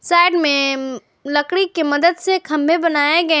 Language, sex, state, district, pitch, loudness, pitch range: Hindi, female, Jharkhand, Garhwa, 320 Hz, -16 LUFS, 290-345 Hz